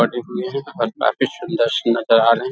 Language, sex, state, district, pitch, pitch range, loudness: Hindi, male, Bihar, Darbhanga, 120 Hz, 115-170 Hz, -19 LUFS